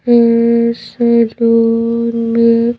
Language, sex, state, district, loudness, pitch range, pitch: Hindi, female, Madhya Pradesh, Bhopal, -12 LUFS, 230-235 Hz, 230 Hz